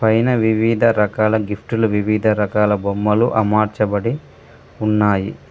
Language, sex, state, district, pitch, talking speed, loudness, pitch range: Telugu, male, Telangana, Mahabubabad, 110 Hz, 100 wpm, -17 LUFS, 105-110 Hz